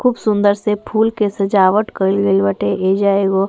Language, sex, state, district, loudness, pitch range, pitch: Bhojpuri, female, Uttar Pradesh, Ghazipur, -15 LUFS, 190-210 Hz, 200 Hz